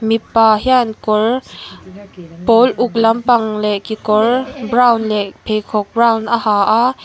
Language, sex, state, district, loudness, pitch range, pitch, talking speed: Mizo, female, Mizoram, Aizawl, -14 LUFS, 215-235 Hz, 225 Hz, 130 wpm